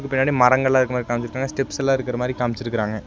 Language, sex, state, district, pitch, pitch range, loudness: Tamil, male, Tamil Nadu, Nilgiris, 125 Hz, 120-135 Hz, -21 LUFS